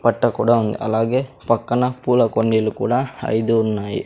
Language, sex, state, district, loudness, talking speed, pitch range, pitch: Telugu, female, Andhra Pradesh, Sri Satya Sai, -19 LUFS, 135 wpm, 110-125 Hz, 115 Hz